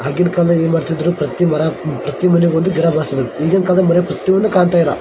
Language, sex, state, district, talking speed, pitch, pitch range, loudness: Kannada, male, Karnataka, Dharwad, 205 wpm, 170 Hz, 160-180 Hz, -15 LUFS